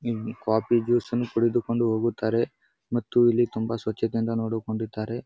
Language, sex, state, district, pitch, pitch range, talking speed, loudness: Kannada, male, Karnataka, Bijapur, 115 Hz, 110-120 Hz, 135 wpm, -26 LUFS